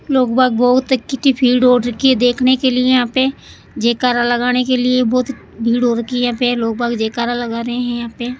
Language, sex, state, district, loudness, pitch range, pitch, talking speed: Hindi, female, Rajasthan, Jaipur, -15 LUFS, 240-255 Hz, 245 Hz, 205 wpm